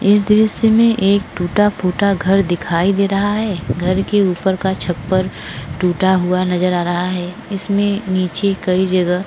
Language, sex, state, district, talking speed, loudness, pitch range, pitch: Hindi, female, Goa, North and South Goa, 170 wpm, -16 LUFS, 180-200 Hz, 190 Hz